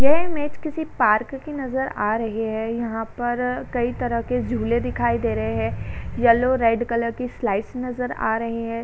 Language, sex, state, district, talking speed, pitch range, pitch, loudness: Hindi, female, Uttar Pradesh, Jalaun, 190 wpm, 225-250 Hz, 235 Hz, -23 LUFS